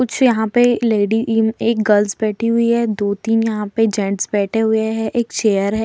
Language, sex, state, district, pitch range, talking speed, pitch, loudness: Hindi, female, Bihar, Vaishali, 210-230 Hz, 215 wpm, 220 Hz, -17 LUFS